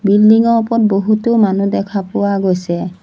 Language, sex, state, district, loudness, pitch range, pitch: Assamese, female, Assam, Sonitpur, -14 LUFS, 195-220 Hz, 200 Hz